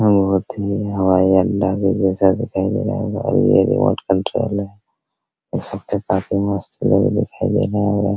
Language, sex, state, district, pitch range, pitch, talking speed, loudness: Hindi, male, Bihar, Araria, 95-105 Hz, 100 Hz, 190 wpm, -18 LUFS